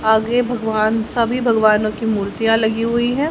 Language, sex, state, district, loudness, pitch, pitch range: Hindi, female, Haryana, Jhajjar, -17 LUFS, 225 Hz, 220-235 Hz